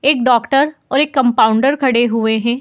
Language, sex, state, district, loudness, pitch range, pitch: Hindi, female, Uttar Pradesh, Muzaffarnagar, -14 LUFS, 235-275 Hz, 255 Hz